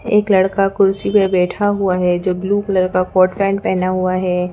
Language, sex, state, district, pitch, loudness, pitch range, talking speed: Hindi, female, Madhya Pradesh, Bhopal, 190 Hz, -16 LUFS, 185-200 Hz, 210 wpm